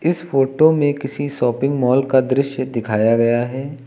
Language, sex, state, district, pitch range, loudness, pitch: Hindi, male, Uttar Pradesh, Lucknow, 125-140 Hz, -17 LUFS, 135 Hz